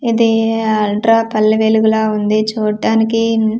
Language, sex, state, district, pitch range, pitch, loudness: Telugu, female, Andhra Pradesh, Manyam, 215-225 Hz, 220 Hz, -14 LUFS